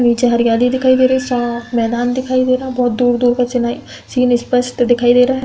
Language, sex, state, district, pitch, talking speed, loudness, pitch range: Hindi, female, Uttar Pradesh, Hamirpur, 245 Hz, 210 wpm, -14 LUFS, 240-255 Hz